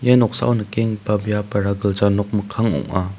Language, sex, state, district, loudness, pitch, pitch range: Garo, male, Meghalaya, West Garo Hills, -20 LUFS, 105 Hz, 100-115 Hz